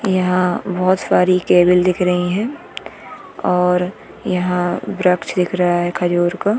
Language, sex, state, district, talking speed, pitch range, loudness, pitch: Hindi, female, Chhattisgarh, Bilaspur, 135 wpm, 180-185 Hz, -17 LUFS, 180 Hz